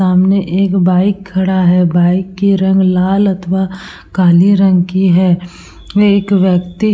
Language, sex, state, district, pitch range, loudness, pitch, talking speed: Hindi, female, Uttar Pradesh, Etah, 180-195 Hz, -12 LUFS, 190 Hz, 145 wpm